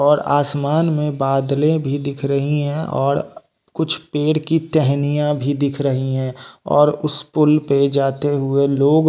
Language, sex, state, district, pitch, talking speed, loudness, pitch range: Hindi, male, Bihar, West Champaran, 145 Hz, 165 wpm, -18 LUFS, 140-150 Hz